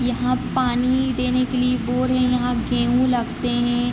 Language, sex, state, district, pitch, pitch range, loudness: Hindi, female, Jharkhand, Sahebganj, 250 Hz, 245-255 Hz, -20 LUFS